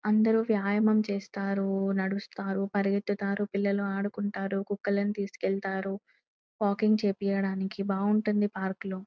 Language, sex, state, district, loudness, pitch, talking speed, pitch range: Telugu, female, Telangana, Nalgonda, -29 LUFS, 200 Hz, 95 wpm, 195-205 Hz